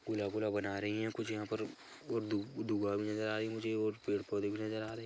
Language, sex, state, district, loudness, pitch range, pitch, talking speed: Hindi, male, Chhattisgarh, Kabirdham, -38 LUFS, 105-110 Hz, 110 Hz, 285 wpm